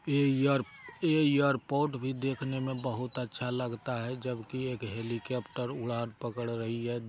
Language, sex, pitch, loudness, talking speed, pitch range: Maithili, male, 125 Hz, -32 LUFS, 170 wpm, 120-135 Hz